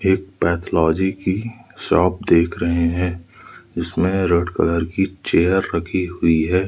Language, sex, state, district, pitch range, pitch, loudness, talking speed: Hindi, male, Madhya Pradesh, Umaria, 85-95 Hz, 90 Hz, -19 LUFS, 135 wpm